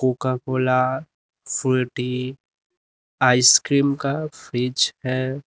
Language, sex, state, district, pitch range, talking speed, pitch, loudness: Hindi, male, Uttar Pradesh, Lalitpur, 125-140 Hz, 75 wpm, 130 Hz, -20 LUFS